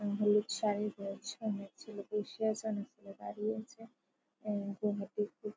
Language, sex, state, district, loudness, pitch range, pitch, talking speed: Bengali, female, West Bengal, Jalpaiguri, -37 LUFS, 205-220 Hz, 210 Hz, 150 wpm